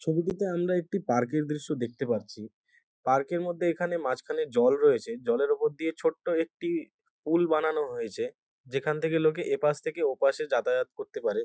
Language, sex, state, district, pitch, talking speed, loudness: Bengali, male, West Bengal, North 24 Parganas, 175 Hz, 170 wpm, -28 LUFS